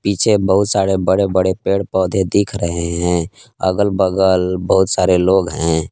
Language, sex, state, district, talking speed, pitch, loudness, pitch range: Hindi, male, Jharkhand, Palamu, 160 wpm, 95 Hz, -16 LUFS, 90-100 Hz